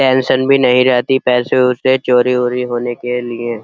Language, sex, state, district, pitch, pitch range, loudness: Hindi, male, Uttar Pradesh, Muzaffarnagar, 125 Hz, 125-130 Hz, -14 LUFS